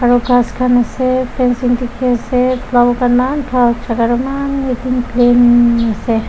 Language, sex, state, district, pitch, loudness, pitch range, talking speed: Nagamese, female, Nagaland, Dimapur, 245 Hz, -13 LUFS, 240-255 Hz, 155 wpm